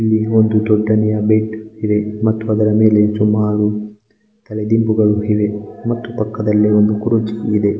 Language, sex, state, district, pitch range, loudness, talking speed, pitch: Kannada, male, Karnataka, Mysore, 105-110 Hz, -15 LUFS, 130 wpm, 110 Hz